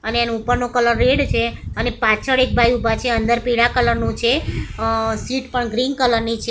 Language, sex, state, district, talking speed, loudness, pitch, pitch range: Gujarati, female, Gujarat, Gandhinagar, 220 wpm, -18 LUFS, 235 Hz, 225-245 Hz